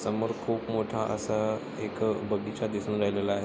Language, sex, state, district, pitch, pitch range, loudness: Marathi, male, Maharashtra, Nagpur, 110 Hz, 105-110 Hz, -30 LUFS